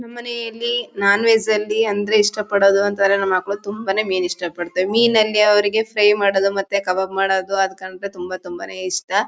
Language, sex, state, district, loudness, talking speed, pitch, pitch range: Kannada, female, Karnataka, Mysore, -18 LUFS, 175 wpm, 200 Hz, 190-215 Hz